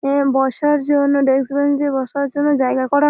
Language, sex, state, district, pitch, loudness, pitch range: Bengali, female, West Bengal, Malda, 280 Hz, -17 LUFS, 270-285 Hz